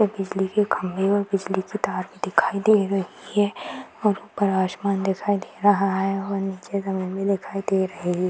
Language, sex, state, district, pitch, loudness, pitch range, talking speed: Hindi, female, Bihar, Madhepura, 195 Hz, -24 LUFS, 190-205 Hz, 195 wpm